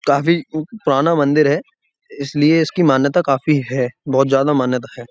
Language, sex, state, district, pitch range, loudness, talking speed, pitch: Hindi, male, Uttar Pradesh, Budaun, 135-165 Hz, -16 LUFS, 155 wpm, 145 Hz